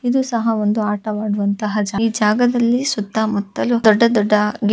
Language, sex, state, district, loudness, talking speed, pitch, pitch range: Kannada, female, Karnataka, Bellary, -17 LUFS, 165 wpm, 215 Hz, 210-235 Hz